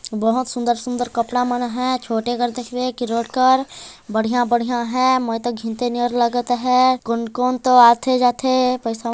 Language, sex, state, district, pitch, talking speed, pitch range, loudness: Hindi, female, Chhattisgarh, Jashpur, 245 Hz, 145 wpm, 235-250 Hz, -19 LUFS